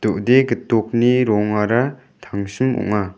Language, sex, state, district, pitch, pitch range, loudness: Garo, male, Meghalaya, West Garo Hills, 115 Hz, 105-125 Hz, -18 LUFS